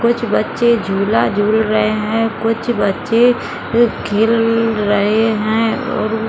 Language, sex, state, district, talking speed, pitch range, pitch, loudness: Hindi, female, Bihar, Saran, 125 wpm, 215-230 Hz, 225 Hz, -15 LUFS